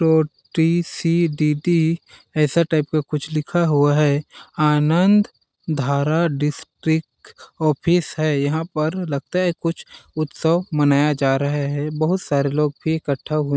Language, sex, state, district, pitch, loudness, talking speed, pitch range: Hindi, male, Chhattisgarh, Balrampur, 155 Hz, -20 LUFS, 135 wpm, 145-165 Hz